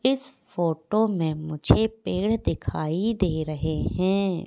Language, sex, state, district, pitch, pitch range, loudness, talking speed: Hindi, female, Madhya Pradesh, Katni, 185 Hz, 155-220 Hz, -25 LUFS, 120 wpm